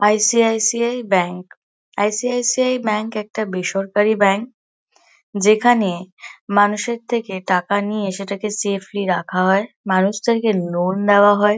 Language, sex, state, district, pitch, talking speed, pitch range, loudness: Bengali, female, West Bengal, Kolkata, 205 Hz, 110 wpm, 195-225 Hz, -18 LUFS